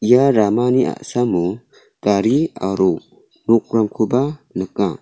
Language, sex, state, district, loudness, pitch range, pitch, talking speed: Garo, male, Meghalaya, South Garo Hills, -18 LUFS, 100-125 Hz, 115 Hz, 85 wpm